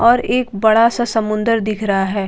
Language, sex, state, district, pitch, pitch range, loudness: Hindi, female, Bihar, Katihar, 220 Hz, 210-230 Hz, -16 LUFS